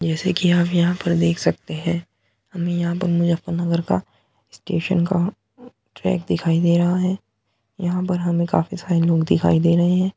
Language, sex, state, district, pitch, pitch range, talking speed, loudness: Hindi, male, Uttar Pradesh, Muzaffarnagar, 170 Hz, 160-175 Hz, 185 wpm, -20 LUFS